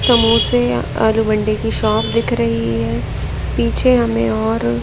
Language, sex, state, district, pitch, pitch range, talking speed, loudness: Hindi, female, Madhya Pradesh, Katni, 120 Hz, 115-140 Hz, 135 wpm, -16 LUFS